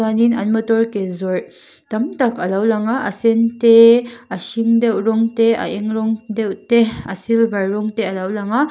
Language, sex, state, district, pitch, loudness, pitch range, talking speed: Mizo, female, Mizoram, Aizawl, 225 Hz, -17 LUFS, 210-230 Hz, 205 wpm